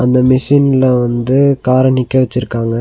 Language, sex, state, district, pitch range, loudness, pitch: Tamil, male, Tamil Nadu, Nilgiris, 125-130 Hz, -12 LUFS, 130 Hz